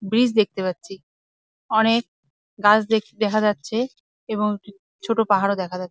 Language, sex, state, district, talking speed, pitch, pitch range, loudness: Bengali, female, West Bengal, Jalpaiguri, 130 wpm, 210 Hz, 185-220 Hz, -21 LUFS